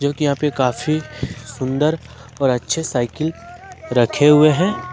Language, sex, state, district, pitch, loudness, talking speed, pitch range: Hindi, male, Jharkhand, Ranchi, 145 Hz, -18 LUFS, 145 wpm, 125-155 Hz